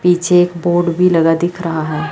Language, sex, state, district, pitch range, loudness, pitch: Hindi, female, Chandigarh, Chandigarh, 165-180 Hz, -14 LUFS, 175 Hz